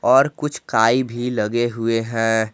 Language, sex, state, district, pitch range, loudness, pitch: Hindi, male, Jharkhand, Garhwa, 115-125 Hz, -20 LUFS, 115 Hz